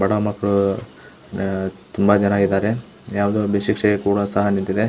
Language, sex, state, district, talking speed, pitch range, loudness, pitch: Kannada, male, Karnataka, Belgaum, 85 wpm, 100-105 Hz, -20 LUFS, 100 Hz